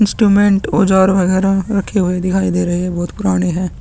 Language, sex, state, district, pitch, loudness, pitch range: Hindi, male, Chhattisgarh, Sukma, 190 Hz, -14 LUFS, 180-200 Hz